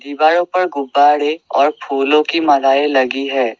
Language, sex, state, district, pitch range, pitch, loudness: Hindi, male, Assam, Sonitpur, 135-155 Hz, 145 Hz, -15 LUFS